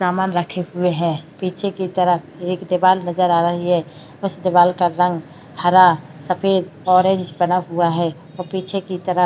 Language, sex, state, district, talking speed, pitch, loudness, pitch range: Hindi, female, Uttar Pradesh, Hamirpur, 180 wpm, 180 Hz, -18 LUFS, 170-185 Hz